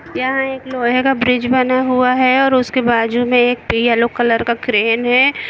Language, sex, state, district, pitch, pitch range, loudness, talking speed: Hindi, female, Jharkhand, Jamtara, 250 Hz, 235-255 Hz, -14 LUFS, 195 wpm